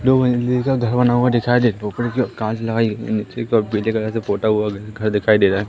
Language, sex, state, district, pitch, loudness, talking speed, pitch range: Hindi, male, Madhya Pradesh, Katni, 115 Hz, -19 LUFS, 245 wpm, 105-120 Hz